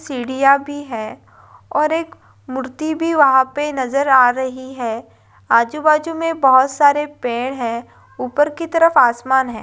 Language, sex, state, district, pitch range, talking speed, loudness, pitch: Hindi, female, West Bengal, Malda, 255-300 Hz, 150 wpm, -16 LUFS, 270 Hz